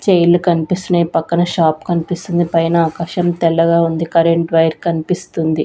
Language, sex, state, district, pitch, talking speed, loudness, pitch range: Telugu, female, Andhra Pradesh, Sri Satya Sai, 170 Hz, 140 wpm, -15 LUFS, 165-175 Hz